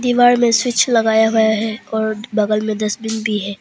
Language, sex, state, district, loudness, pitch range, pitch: Hindi, female, Arunachal Pradesh, Papum Pare, -16 LUFS, 215-230 Hz, 220 Hz